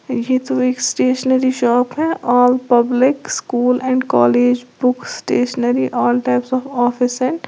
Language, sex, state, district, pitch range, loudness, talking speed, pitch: Hindi, female, Uttar Pradesh, Lalitpur, 245-255 Hz, -16 LUFS, 145 wpm, 250 Hz